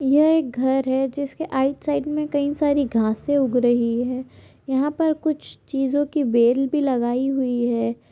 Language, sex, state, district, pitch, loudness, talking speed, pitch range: Hindi, female, Chhattisgarh, Balrampur, 270 Hz, -21 LUFS, 175 wpm, 250-290 Hz